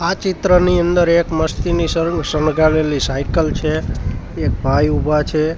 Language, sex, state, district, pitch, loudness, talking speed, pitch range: Gujarati, male, Gujarat, Gandhinagar, 160 Hz, -16 LUFS, 140 wpm, 150-170 Hz